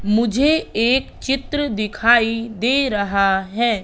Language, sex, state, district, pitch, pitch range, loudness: Hindi, female, Madhya Pradesh, Katni, 230 Hz, 210-265 Hz, -18 LUFS